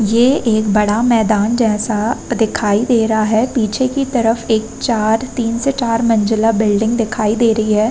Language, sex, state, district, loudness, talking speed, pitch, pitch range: Hindi, female, Uttar Pradesh, Varanasi, -15 LUFS, 175 wpm, 225 Hz, 215-235 Hz